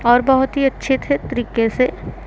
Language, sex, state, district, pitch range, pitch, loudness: Hindi, female, Punjab, Pathankot, 240-270 Hz, 260 Hz, -18 LUFS